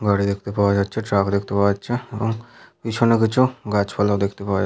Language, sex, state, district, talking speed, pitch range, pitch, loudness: Bengali, male, West Bengal, Paschim Medinipur, 195 wpm, 100-115 Hz, 105 Hz, -21 LUFS